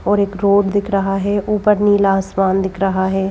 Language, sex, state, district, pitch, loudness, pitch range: Hindi, female, Madhya Pradesh, Bhopal, 195 Hz, -16 LUFS, 195-205 Hz